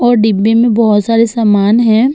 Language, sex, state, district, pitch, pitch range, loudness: Hindi, female, Uttar Pradesh, Jalaun, 225 Hz, 215-230 Hz, -10 LUFS